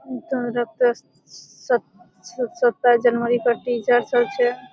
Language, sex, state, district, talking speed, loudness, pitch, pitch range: Maithili, female, Bihar, Supaul, 90 wpm, -21 LUFS, 240 Hz, 240-245 Hz